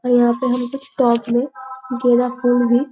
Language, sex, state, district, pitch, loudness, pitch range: Hindi, female, Chhattisgarh, Bastar, 250 Hz, -18 LUFS, 245-260 Hz